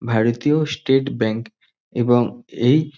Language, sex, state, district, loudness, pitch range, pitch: Bengali, male, West Bengal, North 24 Parganas, -20 LUFS, 120-145 Hz, 120 Hz